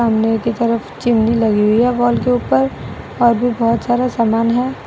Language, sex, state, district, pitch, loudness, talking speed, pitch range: Hindi, female, Assam, Sonitpur, 230 Hz, -15 LUFS, 195 wpm, 225-240 Hz